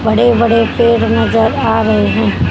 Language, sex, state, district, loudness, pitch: Hindi, female, Haryana, Rohtak, -12 LUFS, 115 Hz